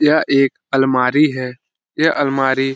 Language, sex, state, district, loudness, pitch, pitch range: Hindi, male, Bihar, Lakhisarai, -16 LUFS, 135 Hz, 130-150 Hz